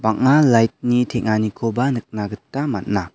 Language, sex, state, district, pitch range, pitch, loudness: Garo, male, Meghalaya, West Garo Hills, 110-125 Hz, 115 Hz, -19 LUFS